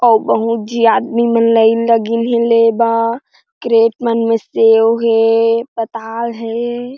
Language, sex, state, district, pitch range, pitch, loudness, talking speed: Chhattisgarhi, female, Chhattisgarh, Jashpur, 225-235 Hz, 230 Hz, -13 LUFS, 155 wpm